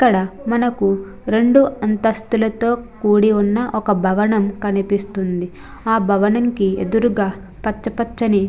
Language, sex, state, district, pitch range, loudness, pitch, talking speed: Telugu, female, Andhra Pradesh, Chittoor, 200-230 Hz, -18 LUFS, 215 Hz, 105 wpm